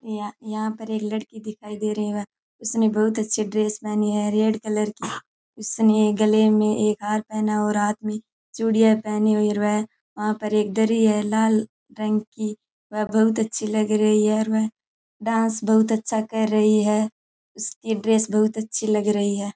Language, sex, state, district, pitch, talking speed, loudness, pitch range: Rajasthani, male, Rajasthan, Churu, 215 Hz, 190 wpm, -22 LUFS, 210-220 Hz